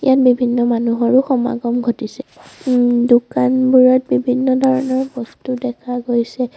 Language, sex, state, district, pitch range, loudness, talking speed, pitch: Assamese, female, Assam, Sonitpur, 240-260 Hz, -16 LUFS, 110 wpm, 250 Hz